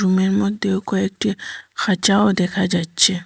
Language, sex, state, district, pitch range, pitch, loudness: Bengali, female, Assam, Hailakandi, 185-200 Hz, 195 Hz, -19 LUFS